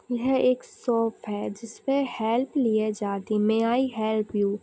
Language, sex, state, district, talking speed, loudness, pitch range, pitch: Hindi, female, Bihar, Lakhisarai, 170 wpm, -26 LUFS, 215-250 Hz, 225 Hz